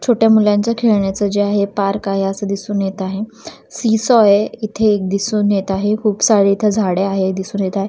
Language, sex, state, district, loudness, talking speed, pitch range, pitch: Marathi, female, Maharashtra, Washim, -16 LUFS, 200 wpm, 195-215 Hz, 205 Hz